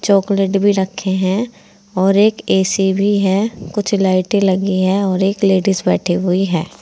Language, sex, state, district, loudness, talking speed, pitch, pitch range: Hindi, female, Uttar Pradesh, Saharanpur, -15 LUFS, 165 wpm, 195 Hz, 190-200 Hz